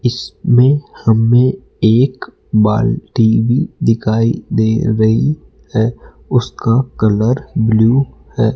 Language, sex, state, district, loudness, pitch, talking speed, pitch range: Hindi, male, Rajasthan, Jaipur, -14 LUFS, 115 Hz, 90 wpm, 110-125 Hz